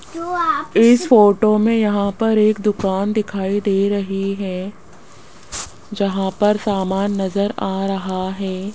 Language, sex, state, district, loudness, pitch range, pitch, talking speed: Hindi, female, Rajasthan, Jaipur, -18 LUFS, 195-215 Hz, 200 Hz, 125 wpm